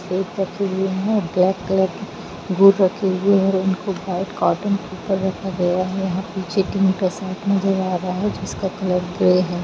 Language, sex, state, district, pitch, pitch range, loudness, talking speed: Hindi, female, Jharkhand, Jamtara, 190 Hz, 185-195 Hz, -20 LUFS, 50 wpm